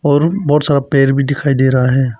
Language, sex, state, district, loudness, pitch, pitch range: Hindi, male, Arunachal Pradesh, Papum Pare, -13 LUFS, 140 Hz, 130-145 Hz